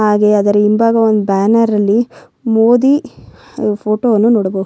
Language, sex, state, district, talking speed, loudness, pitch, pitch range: Kannada, female, Karnataka, Bellary, 140 wpm, -12 LUFS, 215 Hz, 210-230 Hz